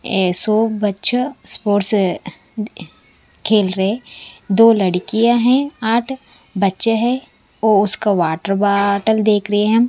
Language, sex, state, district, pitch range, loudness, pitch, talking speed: Hindi, female, Punjab, Kapurthala, 195-230 Hz, -16 LUFS, 215 Hz, 115 wpm